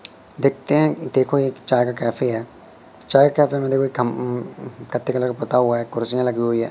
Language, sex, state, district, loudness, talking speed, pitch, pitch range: Hindi, male, Madhya Pradesh, Katni, -20 LUFS, 225 wpm, 125 Hz, 120-135 Hz